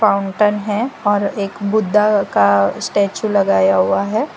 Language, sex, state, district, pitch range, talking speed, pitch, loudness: Hindi, female, Gujarat, Valsad, 195-210 Hz, 135 wpm, 205 Hz, -16 LUFS